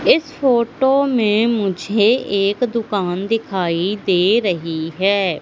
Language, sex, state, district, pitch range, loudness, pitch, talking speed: Hindi, female, Madhya Pradesh, Katni, 185-235 Hz, -17 LUFS, 205 Hz, 110 wpm